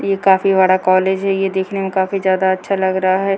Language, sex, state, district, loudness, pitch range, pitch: Hindi, female, Bihar, Purnia, -15 LUFS, 190-195 Hz, 190 Hz